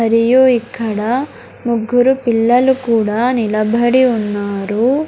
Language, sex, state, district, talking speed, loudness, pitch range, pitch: Telugu, male, Andhra Pradesh, Sri Satya Sai, 85 wpm, -14 LUFS, 220-255 Hz, 235 Hz